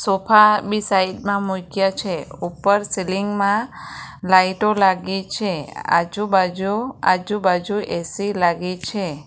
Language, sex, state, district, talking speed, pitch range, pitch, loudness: Gujarati, female, Gujarat, Valsad, 110 wpm, 185-205 Hz, 195 Hz, -19 LUFS